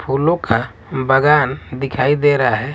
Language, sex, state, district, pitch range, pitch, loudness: Hindi, male, Maharashtra, Washim, 130-145 Hz, 135 Hz, -16 LUFS